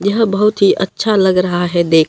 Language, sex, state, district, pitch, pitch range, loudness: Hindi, female, Bihar, Katihar, 195 Hz, 175-210 Hz, -14 LUFS